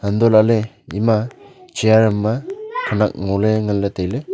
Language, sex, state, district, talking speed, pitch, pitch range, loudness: Wancho, male, Arunachal Pradesh, Longding, 195 wpm, 110 Hz, 105-120 Hz, -18 LUFS